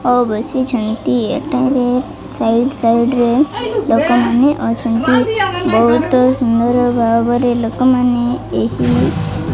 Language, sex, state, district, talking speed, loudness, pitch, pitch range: Odia, female, Odisha, Malkangiri, 90 wpm, -14 LUFS, 245 Hz, 230-260 Hz